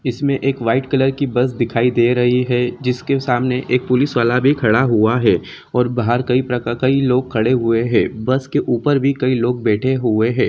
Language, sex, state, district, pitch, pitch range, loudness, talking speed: Hindi, male, Jharkhand, Sahebganj, 125 Hz, 120-130 Hz, -17 LUFS, 215 wpm